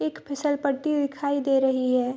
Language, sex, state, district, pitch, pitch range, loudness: Hindi, female, Bihar, Madhepura, 275 Hz, 255-285 Hz, -25 LUFS